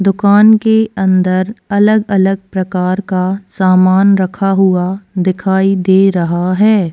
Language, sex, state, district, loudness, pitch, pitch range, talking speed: Hindi, female, Chhattisgarh, Kabirdham, -12 LUFS, 190 Hz, 185-200 Hz, 115 wpm